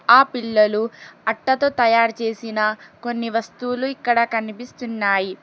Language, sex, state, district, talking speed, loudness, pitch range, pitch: Telugu, female, Telangana, Hyderabad, 100 wpm, -20 LUFS, 220-245 Hz, 230 Hz